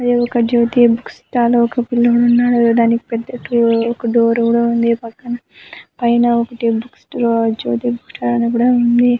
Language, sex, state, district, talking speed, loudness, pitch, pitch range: Telugu, female, Andhra Pradesh, Anantapur, 170 wpm, -15 LUFS, 235 Hz, 230-240 Hz